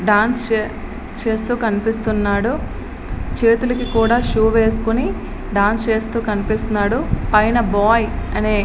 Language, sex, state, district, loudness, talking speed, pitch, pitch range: Telugu, female, Andhra Pradesh, Srikakulam, -18 LUFS, 85 wpm, 225 Hz, 215-230 Hz